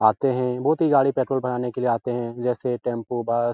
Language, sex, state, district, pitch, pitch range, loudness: Hindi, male, Bihar, Araria, 125 Hz, 120-130 Hz, -23 LUFS